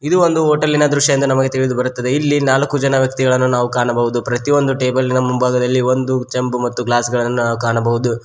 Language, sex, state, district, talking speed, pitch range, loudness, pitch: Kannada, male, Karnataka, Koppal, 160 wpm, 120-140 Hz, -16 LUFS, 130 Hz